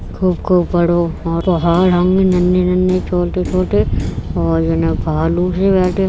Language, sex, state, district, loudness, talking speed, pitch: Hindi, female, Uttar Pradesh, Etah, -15 LUFS, 140 wpm, 175 Hz